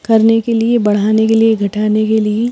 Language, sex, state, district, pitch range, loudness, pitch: Hindi, female, Himachal Pradesh, Shimla, 215-225 Hz, -13 LUFS, 220 Hz